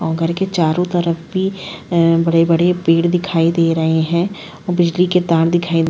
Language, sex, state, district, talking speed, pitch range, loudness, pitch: Hindi, female, Bihar, Madhepura, 195 wpm, 165-180 Hz, -16 LUFS, 170 Hz